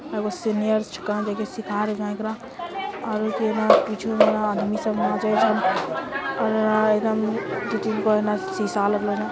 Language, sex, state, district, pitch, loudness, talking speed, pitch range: Angika, female, Bihar, Bhagalpur, 215 Hz, -23 LUFS, 130 wpm, 210-220 Hz